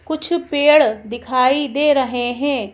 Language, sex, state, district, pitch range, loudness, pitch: Hindi, female, Madhya Pradesh, Bhopal, 245-300 Hz, -16 LUFS, 280 Hz